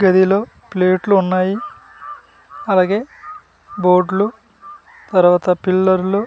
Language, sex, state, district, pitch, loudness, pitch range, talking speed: Telugu, male, Andhra Pradesh, Manyam, 195 Hz, -16 LUFS, 185-230 Hz, 75 wpm